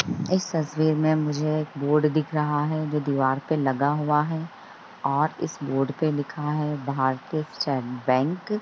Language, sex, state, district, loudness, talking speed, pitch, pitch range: Hindi, male, Bihar, Jahanabad, -25 LUFS, 165 wpm, 150 Hz, 140-155 Hz